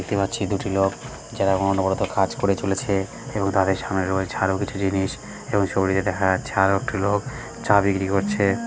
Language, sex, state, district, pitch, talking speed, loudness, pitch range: Bengali, male, West Bengal, Malda, 95 Hz, 180 wpm, -22 LUFS, 95-100 Hz